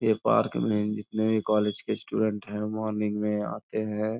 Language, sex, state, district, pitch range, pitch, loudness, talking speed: Hindi, male, Uttar Pradesh, Etah, 105-110 Hz, 105 Hz, -28 LUFS, 185 wpm